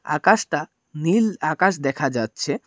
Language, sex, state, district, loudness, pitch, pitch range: Bengali, male, Tripura, Dhalai, -21 LUFS, 155 Hz, 135-185 Hz